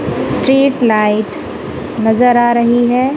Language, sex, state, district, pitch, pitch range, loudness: Hindi, female, Punjab, Kapurthala, 240 Hz, 220-255 Hz, -12 LUFS